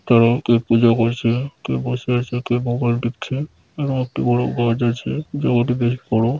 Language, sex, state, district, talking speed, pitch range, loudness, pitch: Bengali, male, West Bengal, Dakshin Dinajpur, 195 wpm, 120-125 Hz, -19 LUFS, 120 Hz